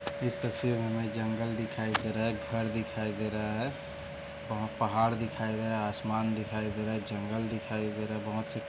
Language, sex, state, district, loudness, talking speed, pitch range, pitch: Hindi, male, Maharashtra, Aurangabad, -33 LUFS, 220 wpm, 110-115 Hz, 110 Hz